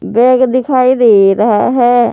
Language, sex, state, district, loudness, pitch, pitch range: Hindi, female, Jharkhand, Palamu, -10 LUFS, 245 Hz, 225-255 Hz